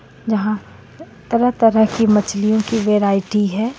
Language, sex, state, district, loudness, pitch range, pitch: Hindi, female, Jharkhand, Ranchi, -17 LUFS, 210-225 Hz, 215 Hz